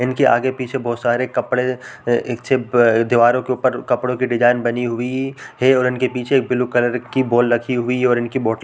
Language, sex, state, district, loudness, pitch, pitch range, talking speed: Hindi, male, Bihar, Sitamarhi, -18 LUFS, 125 Hz, 120-130 Hz, 215 wpm